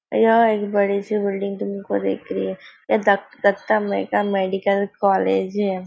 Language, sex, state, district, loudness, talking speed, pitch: Hindi, female, Maharashtra, Nagpur, -20 LUFS, 175 wpm, 200 Hz